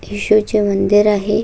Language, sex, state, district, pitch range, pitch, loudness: Marathi, female, Maharashtra, Solapur, 205-210 Hz, 210 Hz, -14 LUFS